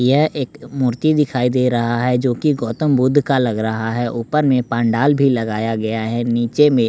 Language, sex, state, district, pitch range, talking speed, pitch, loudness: Hindi, male, Bihar, West Champaran, 115-140 Hz, 215 wpm, 125 Hz, -17 LUFS